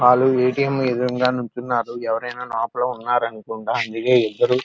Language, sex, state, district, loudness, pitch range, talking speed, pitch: Telugu, male, Andhra Pradesh, Krishna, -21 LUFS, 115-125 Hz, 170 wpm, 125 Hz